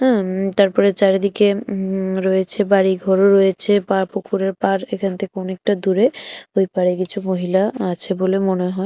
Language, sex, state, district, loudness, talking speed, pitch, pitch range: Bengali, female, Tripura, West Tripura, -18 LUFS, 150 wpm, 195 Hz, 190-200 Hz